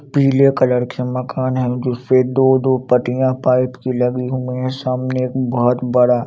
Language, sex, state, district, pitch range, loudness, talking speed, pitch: Hindi, male, Chandigarh, Chandigarh, 125-130 Hz, -17 LUFS, 160 wpm, 125 Hz